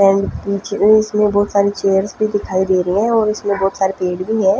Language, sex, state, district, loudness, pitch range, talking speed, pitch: Hindi, female, Punjab, Fazilka, -16 LUFS, 195-210 Hz, 210 wpm, 200 Hz